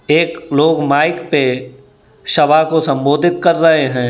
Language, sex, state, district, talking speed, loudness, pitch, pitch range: Hindi, male, Uttar Pradesh, Saharanpur, 145 wpm, -13 LUFS, 150 Hz, 135-165 Hz